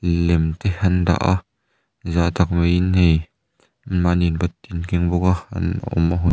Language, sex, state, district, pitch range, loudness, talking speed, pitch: Mizo, male, Mizoram, Aizawl, 85-95 Hz, -20 LUFS, 160 wpm, 90 Hz